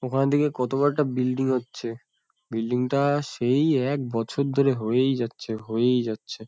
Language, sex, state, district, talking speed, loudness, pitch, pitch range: Bengali, male, West Bengal, Kolkata, 150 wpm, -25 LUFS, 130 Hz, 120-140 Hz